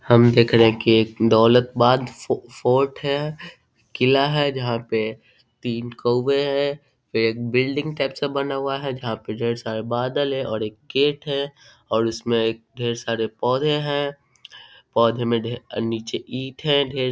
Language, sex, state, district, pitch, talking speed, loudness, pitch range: Hindi, male, Bihar, Vaishali, 125 Hz, 175 wpm, -21 LUFS, 115-140 Hz